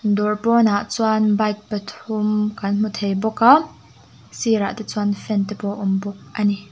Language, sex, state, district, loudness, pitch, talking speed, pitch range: Mizo, female, Mizoram, Aizawl, -20 LUFS, 210 Hz, 195 wpm, 205-220 Hz